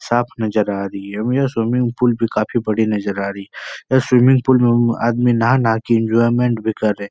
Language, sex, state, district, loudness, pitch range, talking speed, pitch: Hindi, male, Uttar Pradesh, Etah, -17 LUFS, 110-120 Hz, 235 wpm, 115 Hz